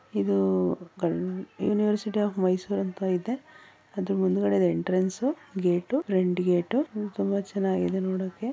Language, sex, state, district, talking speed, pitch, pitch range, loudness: Kannada, female, Karnataka, Mysore, 110 wpm, 190 Hz, 180-210 Hz, -27 LUFS